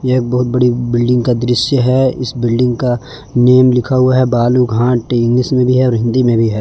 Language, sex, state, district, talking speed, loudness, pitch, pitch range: Hindi, male, Jharkhand, Palamu, 225 wpm, -13 LUFS, 125 Hz, 120-130 Hz